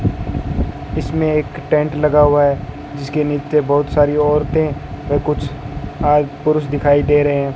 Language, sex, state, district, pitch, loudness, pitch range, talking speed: Hindi, male, Rajasthan, Bikaner, 145 Hz, -16 LUFS, 145-150 Hz, 150 wpm